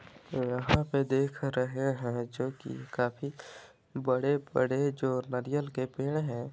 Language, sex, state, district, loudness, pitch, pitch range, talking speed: Hindi, male, Chhattisgarh, Balrampur, -32 LUFS, 130 Hz, 125-140 Hz, 140 wpm